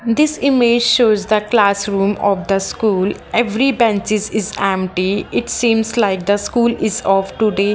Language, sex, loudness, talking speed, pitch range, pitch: English, female, -16 LUFS, 155 wpm, 195-235 Hz, 210 Hz